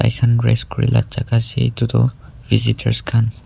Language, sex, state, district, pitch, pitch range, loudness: Nagamese, male, Nagaland, Kohima, 120 Hz, 115-125 Hz, -18 LUFS